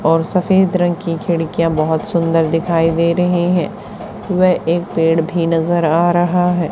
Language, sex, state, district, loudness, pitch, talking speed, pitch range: Hindi, female, Haryana, Charkhi Dadri, -15 LUFS, 170 Hz, 170 wpm, 165-180 Hz